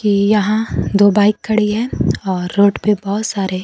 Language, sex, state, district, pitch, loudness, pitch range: Hindi, female, Bihar, Kaimur, 205 Hz, -15 LUFS, 200-210 Hz